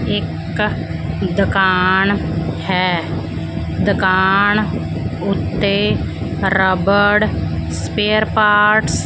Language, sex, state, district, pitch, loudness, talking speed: Punjabi, female, Punjab, Fazilka, 190 Hz, -16 LUFS, 60 wpm